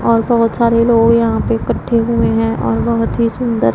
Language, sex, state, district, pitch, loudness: Hindi, female, Punjab, Pathankot, 230 Hz, -14 LUFS